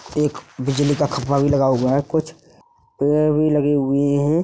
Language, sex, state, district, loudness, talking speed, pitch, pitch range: Hindi, male, Uttar Pradesh, Hamirpur, -19 LUFS, 190 wpm, 145 Hz, 140-155 Hz